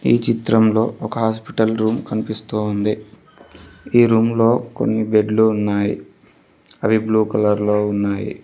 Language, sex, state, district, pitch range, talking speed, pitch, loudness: Telugu, male, Telangana, Mahabubabad, 105-115 Hz, 130 wpm, 110 Hz, -18 LUFS